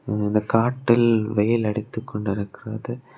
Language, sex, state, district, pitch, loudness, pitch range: Tamil, male, Tamil Nadu, Kanyakumari, 110 Hz, -23 LUFS, 105-115 Hz